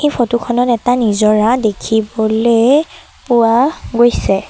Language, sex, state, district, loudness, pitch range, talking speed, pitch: Assamese, female, Assam, Sonitpur, -13 LUFS, 220-245 Hz, 95 wpm, 235 Hz